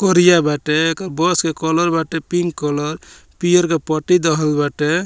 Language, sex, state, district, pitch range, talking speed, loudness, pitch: Bhojpuri, male, Bihar, Muzaffarpur, 155-175 Hz, 165 wpm, -17 LUFS, 165 Hz